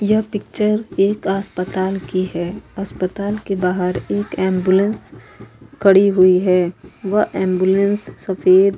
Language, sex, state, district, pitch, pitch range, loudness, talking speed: Hindi, female, Uttar Pradesh, Hamirpur, 190 Hz, 185-200 Hz, -18 LUFS, 125 wpm